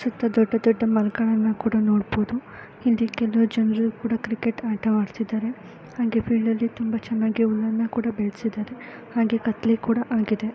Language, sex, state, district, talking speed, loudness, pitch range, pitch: Kannada, female, Karnataka, Raichur, 130 wpm, -23 LUFS, 220-230 Hz, 225 Hz